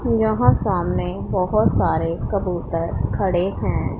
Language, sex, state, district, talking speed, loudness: Hindi, female, Punjab, Pathankot, 105 wpm, -21 LUFS